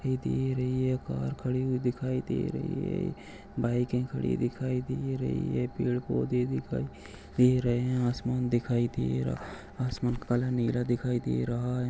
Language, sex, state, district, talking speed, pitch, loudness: Hindi, male, Chhattisgarh, Rajnandgaon, 165 wpm, 125 Hz, -30 LUFS